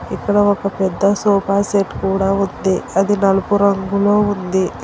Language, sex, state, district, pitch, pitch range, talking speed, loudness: Telugu, female, Telangana, Hyderabad, 200 Hz, 195-205 Hz, 135 wpm, -16 LUFS